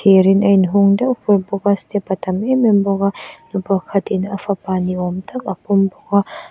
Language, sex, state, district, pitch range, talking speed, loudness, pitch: Mizo, female, Mizoram, Aizawl, 190-205 Hz, 240 wpm, -17 LUFS, 200 Hz